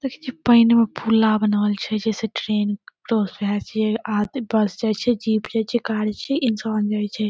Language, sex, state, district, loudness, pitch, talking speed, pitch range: Maithili, female, Bihar, Saharsa, -21 LUFS, 220 Hz, 190 wpm, 210-230 Hz